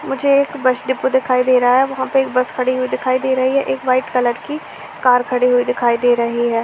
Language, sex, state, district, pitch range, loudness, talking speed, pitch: Hindi, female, Uttar Pradesh, Gorakhpur, 245-265 Hz, -16 LUFS, 255 wpm, 255 Hz